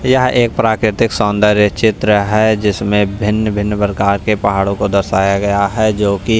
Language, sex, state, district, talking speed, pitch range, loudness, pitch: Hindi, male, Punjab, Pathankot, 160 wpm, 100-110 Hz, -14 LUFS, 105 Hz